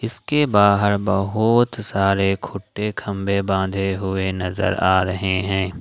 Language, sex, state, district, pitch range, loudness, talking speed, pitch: Hindi, male, Jharkhand, Ranchi, 95-105 Hz, -20 LUFS, 125 wpm, 100 Hz